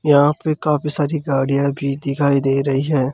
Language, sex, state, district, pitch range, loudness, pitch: Hindi, male, Rajasthan, Jaipur, 140-150 Hz, -18 LUFS, 140 Hz